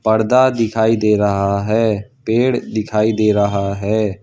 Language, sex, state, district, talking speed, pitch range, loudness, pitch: Hindi, male, Gujarat, Valsad, 140 wpm, 105-115 Hz, -16 LUFS, 110 Hz